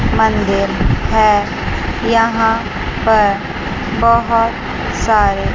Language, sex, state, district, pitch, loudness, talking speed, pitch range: Hindi, female, Chandigarh, Chandigarh, 225 Hz, -15 LUFS, 65 wpm, 210-230 Hz